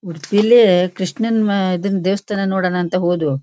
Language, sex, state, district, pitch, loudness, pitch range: Kannada, female, Karnataka, Shimoga, 190 Hz, -16 LUFS, 180-200 Hz